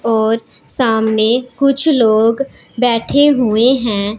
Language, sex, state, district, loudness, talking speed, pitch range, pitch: Hindi, female, Punjab, Pathankot, -14 LUFS, 100 wpm, 220-260 Hz, 230 Hz